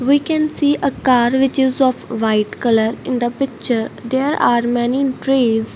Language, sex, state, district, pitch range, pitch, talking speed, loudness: English, female, Punjab, Fazilka, 235-275 Hz, 255 Hz, 175 wpm, -17 LUFS